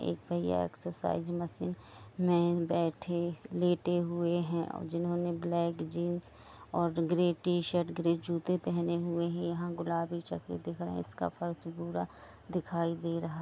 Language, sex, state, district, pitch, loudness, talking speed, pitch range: Hindi, female, Jharkhand, Jamtara, 170 Hz, -34 LUFS, 150 wpm, 120-175 Hz